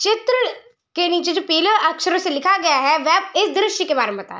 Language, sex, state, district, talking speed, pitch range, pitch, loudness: Hindi, female, Bihar, Araria, 245 wpm, 320-415 Hz, 360 Hz, -18 LUFS